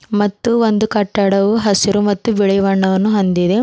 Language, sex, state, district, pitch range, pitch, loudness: Kannada, female, Karnataka, Bidar, 195-215 Hz, 205 Hz, -15 LUFS